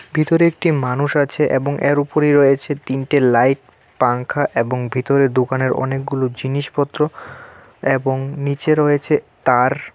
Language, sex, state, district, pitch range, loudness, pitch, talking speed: Bengali, male, Tripura, West Tripura, 130-145 Hz, -17 LUFS, 140 Hz, 120 wpm